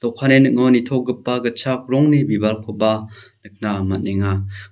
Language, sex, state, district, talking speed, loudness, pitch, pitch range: Garo, male, Meghalaya, South Garo Hills, 100 wpm, -18 LUFS, 115 Hz, 105-125 Hz